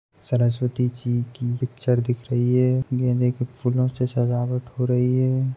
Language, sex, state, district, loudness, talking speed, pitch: Hindi, male, Bihar, Samastipur, -23 LUFS, 160 wpm, 125 Hz